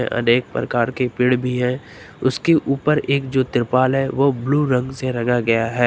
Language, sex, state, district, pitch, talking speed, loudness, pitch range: Hindi, male, Uttar Pradesh, Lucknow, 130 Hz, 195 wpm, -19 LUFS, 120-135 Hz